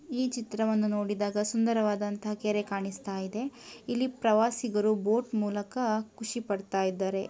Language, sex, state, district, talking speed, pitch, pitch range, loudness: Kannada, female, Karnataka, Mysore, 100 wpm, 215 Hz, 205-230 Hz, -30 LUFS